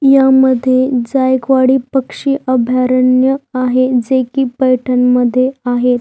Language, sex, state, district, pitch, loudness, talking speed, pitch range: Marathi, female, Maharashtra, Aurangabad, 255 Hz, -12 LUFS, 110 wpm, 250-265 Hz